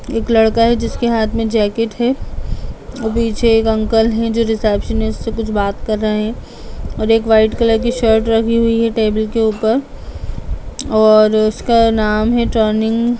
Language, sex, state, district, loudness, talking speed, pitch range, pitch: Hindi, female, Uttar Pradesh, Jalaun, -15 LUFS, 175 wpm, 220-230 Hz, 225 Hz